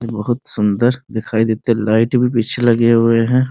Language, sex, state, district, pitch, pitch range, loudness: Hindi, male, Bihar, Muzaffarpur, 115 Hz, 110-120 Hz, -15 LUFS